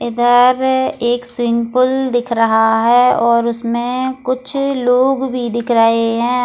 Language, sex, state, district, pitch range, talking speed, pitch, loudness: Hindi, female, Goa, North and South Goa, 235-255 Hz, 150 wpm, 245 Hz, -14 LUFS